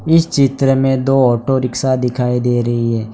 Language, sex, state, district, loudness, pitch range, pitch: Hindi, male, Gujarat, Valsad, -15 LUFS, 125-135 Hz, 130 Hz